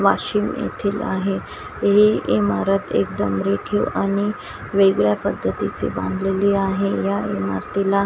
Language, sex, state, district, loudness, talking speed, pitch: Marathi, female, Maharashtra, Washim, -20 LUFS, 110 wpm, 195 Hz